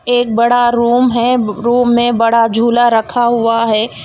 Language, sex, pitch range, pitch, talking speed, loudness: Hindi, female, 230-240 Hz, 235 Hz, 165 wpm, -12 LUFS